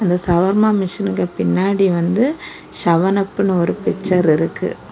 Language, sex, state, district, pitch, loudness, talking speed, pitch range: Tamil, female, Tamil Nadu, Kanyakumari, 185 Hz, -17 LUFS, 135 wpm, 170-200 Hz